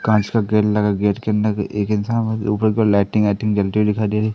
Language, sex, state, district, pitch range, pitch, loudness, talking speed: Hindi, male, Madhya Pradesh, Katni, 105-110 Hz, 105 Hz, -18 LUFS, 250 wpm